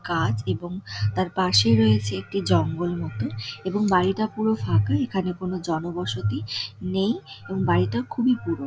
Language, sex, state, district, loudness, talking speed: Bengali, female, West Bengal, Dakshin Dinajpur, -24 LUFS, 140 wpm